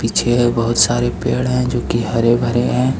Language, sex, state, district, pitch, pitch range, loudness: Hindi, male, Jharkhand, Ranchi, 120 Hz, 115-125 Hz, -16 LUFS